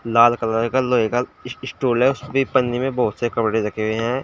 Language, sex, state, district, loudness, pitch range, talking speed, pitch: Hindi, male, Uttar Pradesh, Shamli, -20 LUFS, 115-130 Hz, 240 wpm, 120 Hz